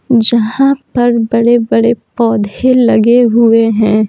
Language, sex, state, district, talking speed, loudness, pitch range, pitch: Hindi, female, Bihar, Patna, 100 wpm, -10 LUFS, 225-240 Hz, 230 Hz